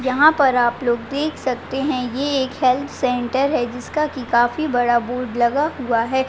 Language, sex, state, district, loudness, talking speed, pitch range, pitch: Hindi, female, Uttar Pradesh, Deoria, -19 LUFS, 190 wpm, 245-280 Hz, 255 Hz